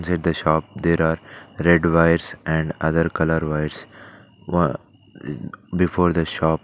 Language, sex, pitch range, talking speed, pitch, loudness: English, male, 80-90 Hz, 135 wpm, 85 Hz, -21 LUFS